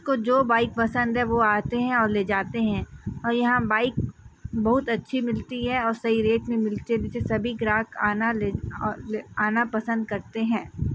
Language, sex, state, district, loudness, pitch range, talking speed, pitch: Hindi, female, Chhattisgarh, Bastar, -25 LUFS, 215-240 Hz, 175 wpm, 230 Hz